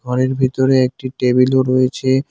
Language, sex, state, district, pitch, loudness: Bengali, male, West Bengal, Cooch Behar, 130 Hz, -16 LUFS